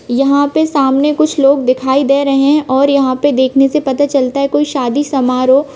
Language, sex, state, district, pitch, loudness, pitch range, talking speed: Hindi, female, Bihar, Vaishali, 275 Hz, -12 LUFS, 265-285 Hz, 210 wpm